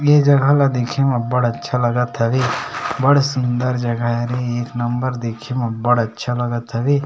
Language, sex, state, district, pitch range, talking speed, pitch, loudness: Chhattisgarhi, male, Chhattisgarh, Sarguja, 120-135 Hz, 195 wpm, 125 Hz, -18 LUFS